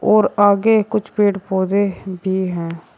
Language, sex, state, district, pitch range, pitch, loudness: Hindi, male, Uttar Pradesh, Shamli, 190-210 Hz, 200 Hz, -17 LUFS